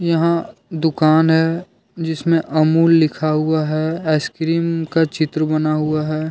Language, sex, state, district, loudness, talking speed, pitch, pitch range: Hindi, male, Jharkhand, Deoghar, -17 LUFS, 135 wpm, 160 Hz, 155-165 Hz